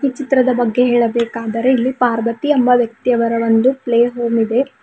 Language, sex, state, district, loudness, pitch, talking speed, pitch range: Kannada, female, Karnataka, Bidar, -15 LUFS, 245 Hz, 150 wpm, 230-255 Hz